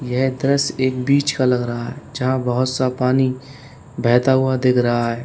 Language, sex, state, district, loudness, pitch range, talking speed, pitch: Hindi, male, Uttar Pradesh, Saharanpur, -19 LUFS, 125-130 Hz, 195 wpm, 130 Hz